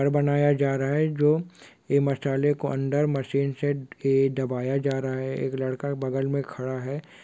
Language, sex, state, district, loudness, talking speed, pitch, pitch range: Hindi, male, Bihar, Kishanganj, -26 LUFS, 180 wpm, 140 Hz, 135-145 Hz